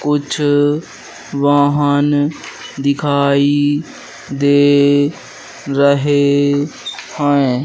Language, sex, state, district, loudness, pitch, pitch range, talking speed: Hindi, male, Madhya Pradesh, Katni, -14 LUFS, 145 Hz, 140-145 Hz, 45 wpm